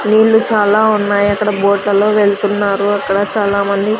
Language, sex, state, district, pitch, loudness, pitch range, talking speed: Telugu, female, Andhra Pradesh, Sri Satya Sai, 205 Hz, -13 LUFS, 200-210 Hz, 150 wpm